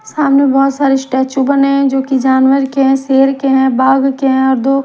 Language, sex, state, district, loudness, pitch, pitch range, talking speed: Hindi, female, Bihar, Patna, -11 LUFS, 270 Hz, 265-275 Hz, 235 wpm